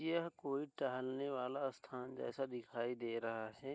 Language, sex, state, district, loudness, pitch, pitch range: Hindi, male, Uttar Pradesh, Hamirpur, -43 LUFS, 130 Hz, 120-140 Hz